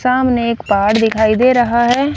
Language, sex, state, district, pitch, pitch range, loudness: Hindi, female, Haryana, Rohtak, 235 Hz, 220-250 Hz, -13 LUFS